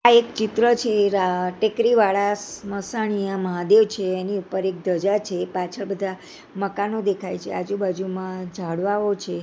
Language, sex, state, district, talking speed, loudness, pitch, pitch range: Gujarati, female, Gujarat, Gandhinagar, 145 wpm, -23 LUFS, 200 Hz, 185-210 Hz